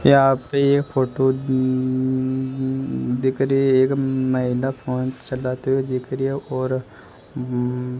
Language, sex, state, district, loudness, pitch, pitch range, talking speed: Hindi, male, Rajasthan, Jaipur, -21 LUFS, 130 Hz, 130-135 Hz, 140 wpm